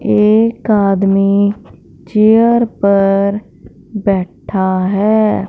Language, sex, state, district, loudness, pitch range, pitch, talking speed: Hindi, female, Punjab, Fazilka, -13 LUFS, 195-215 Hz, 200 Hz, 65 wpm